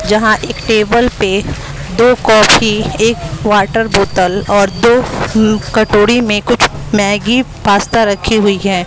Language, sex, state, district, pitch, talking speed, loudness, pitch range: Hindi, female, Bihar, West Champaran, 210 Hz, 130 wpm, -11 LUFS, 200-225 Hz